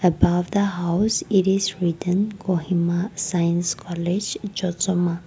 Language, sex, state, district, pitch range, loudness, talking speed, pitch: English, female, Nagaland, Kohima, 175-195 Hz, -22 LUFS, 115 wpm, 180 Hz